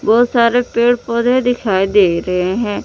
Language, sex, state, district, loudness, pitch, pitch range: Hindi, female, Jharkhand, Palamu, -14 LUFS, 235 Hz, 195-245 Hz